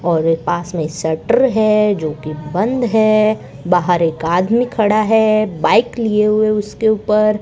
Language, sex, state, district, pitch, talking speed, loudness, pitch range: Hindi, female, Rajasthan, Bikaner, 210 Hz, 160 wpm, -15 LUFS, 170-215 Hz